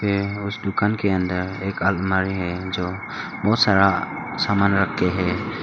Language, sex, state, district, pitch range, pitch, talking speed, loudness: Hindi, male, Arunachal Pradesh, Longding, 90-100 Hz, 100 Hz, 160 wpm, -22 LUFS